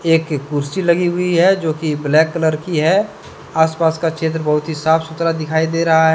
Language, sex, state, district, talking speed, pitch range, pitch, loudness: Hindi, male, Jharkhand, Deoghar, 215 wpm, 155-170 Hz, 160 Hz, -16 LUFS